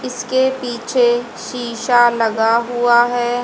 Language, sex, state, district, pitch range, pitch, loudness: Hindi, female, Haryana, Jhajjar, 235-245 Hz, 240 Hz, -16 LUFS